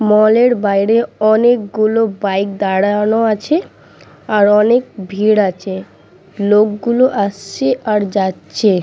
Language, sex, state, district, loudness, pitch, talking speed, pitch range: Bengali, female, West Bengal, Purulia, -14 LUFS, 210 Hz, 100 wpm, 200-225 Hz